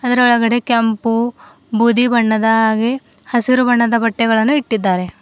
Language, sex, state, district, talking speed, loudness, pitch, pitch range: Kannada, female, Karnataka, Bidar, 105 wpm, -15 LUFS, 235 Hz, 225-245 Hz